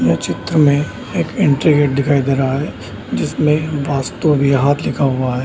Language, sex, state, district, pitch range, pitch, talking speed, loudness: Hindi, male, Bihar, Samastipur, 135-150 Hz, 140 Hz, 175 wpm, -16 LUFS